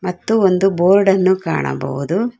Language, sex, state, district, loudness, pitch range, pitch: Kannada, female, Karnataka, Bangalore, -15 LUFS, 180-195 Hz, 190 Hz